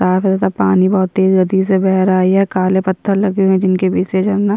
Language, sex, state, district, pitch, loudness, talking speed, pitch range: Hindi, female, Chhattisgarh, Sukma, 190 Hz, -14 LUFS, 275 wpm, 185-195 Hz